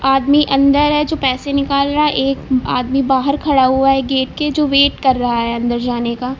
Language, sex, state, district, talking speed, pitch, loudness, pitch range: Hindi, female, Uttar Pradesh, Lucknow, 225 wpm, 270 Hz, -15 LUFS, 260-285 Hz